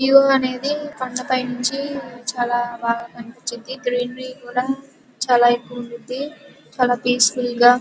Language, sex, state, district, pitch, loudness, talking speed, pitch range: Telugu, female, Andhra Pradesh, Guntur, 250 Hz, -20 LUFS, 130 wpm, 240-265 Hz